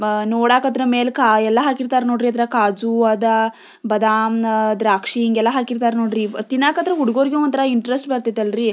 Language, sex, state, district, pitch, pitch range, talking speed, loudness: Kannada, female, Karnataka, Belgaum, 230 Hz, 220-255 Hz, 140 wpm, -17 LUFS